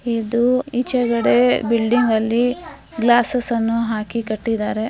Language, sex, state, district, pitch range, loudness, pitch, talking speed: Kannada, female, Karnataka, Mysore, 225-245 Hz, -18 LUFS, 235 Hz, 125 wpm